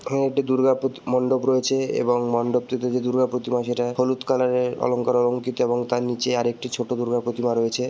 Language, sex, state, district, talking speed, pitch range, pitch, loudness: Bengali, male, West Bengal, Purulia, 180 wpm, 120-130 Hz, 125 Hz, -23 LUFS